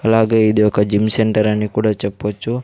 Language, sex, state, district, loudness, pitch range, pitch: Telugu, male, Andhra Pradesh, Sri Satya Sai, -16 LUFS, 105-110 Hz, 105 Hz